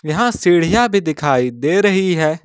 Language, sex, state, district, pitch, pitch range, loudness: Hindi, male, Jharkhand, Ranchi, 170 Hz, 155-200 Hz, -15 LUFS